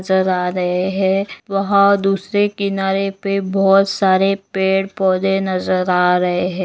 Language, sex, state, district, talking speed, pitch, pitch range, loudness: Hindi, female, Maharashtra, Nagpur, 145 wpm, 195 Hz, 185-195 Hz, -17 LUFS